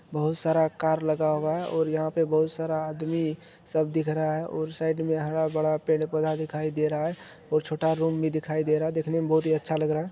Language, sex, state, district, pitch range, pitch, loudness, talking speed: Hindi, male, Bihar, Araria, 155-160 Hz, 155 Hz, -27 LUFS, 245 wpm